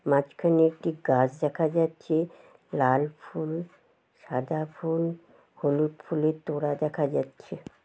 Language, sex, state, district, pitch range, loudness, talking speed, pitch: Bengali, female, West Bengal, Jalpaiguri, 145-165 Hz, -28 LUFS, 105 wpm, 155 Hz